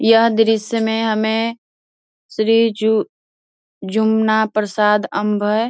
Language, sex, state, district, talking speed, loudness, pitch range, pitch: Hindi, female, Bihar, Saharsa, 105 wpm, -17 LUFS, 210-225 Hz, 220 Hz